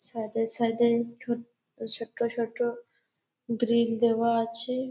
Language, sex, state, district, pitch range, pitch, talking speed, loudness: Bengali, female, West Bengal, Malda, 230-235 Hz, 235 Hz, 120 wpm, -28 LUFS